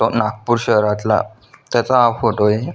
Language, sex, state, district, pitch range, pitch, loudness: Marathi, male, Maharashtra, Solapur, 105-120 Hz, 110 Hz, -17 LUFS